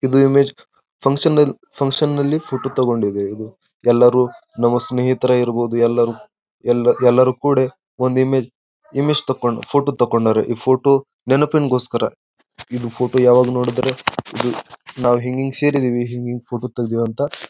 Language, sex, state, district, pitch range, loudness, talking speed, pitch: Kannada, male, Karnataka, Bijapur, 120-135 Hz, -18 LUFS, 125 wpm, 125 Hz